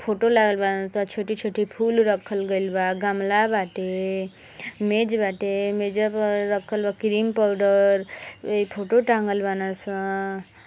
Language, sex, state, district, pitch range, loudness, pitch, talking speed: Bhojpuri, female, Uttar Pradesh, Gorakhpur, 195-215 Hz, -23 LUFS, 205 Hz, 140 wpm